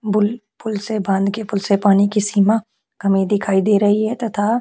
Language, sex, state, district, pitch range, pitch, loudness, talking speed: Hindi, female, Chhattisgarh, Korba, 200-220 Hz, 205 Hz, -18 LUFS, 210 wpm